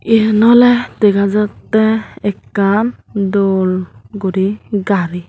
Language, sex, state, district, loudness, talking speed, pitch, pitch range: Chakma, female, Tripura, Dhalai, -14 LUFS, 90 wpm, 205 Hz, 195-220 Hz